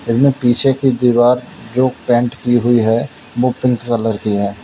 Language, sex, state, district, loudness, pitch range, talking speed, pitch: Hindi, male, Uttar Pradesh, Lalitpur, -15 LUFS, 115-125 Hz, 180 wpm, 120 Hz